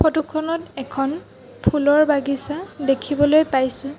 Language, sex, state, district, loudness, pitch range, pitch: Assamese, female, Assam, Sonitpur, -20 LUFS, 275-310 Hz, 290 Hz